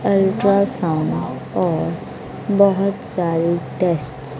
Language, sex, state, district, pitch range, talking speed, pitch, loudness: Hindi, female, Bihar, West Champaran, 165-200 Hz, 80 wpm, 185 Hz, -19 LUFS